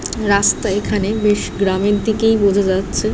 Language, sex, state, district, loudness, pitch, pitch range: Bengali, female, West Bengal, Jhargram, -16 LUFS, 205 Hz, 200-215 Hz